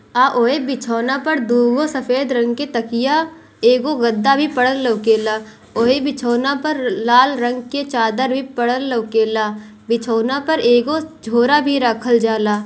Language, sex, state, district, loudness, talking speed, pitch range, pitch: Bhojpuri, female, Bihar, Gopalganj, -17 LUFS, 160 wpm, 235-275 Hz, 245 Hz